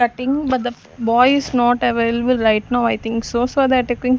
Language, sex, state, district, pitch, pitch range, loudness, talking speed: English, female, Chandigarh, Chandigarh, 245 Hz, 235-255 Hz, -17 LUFS, 215 wpm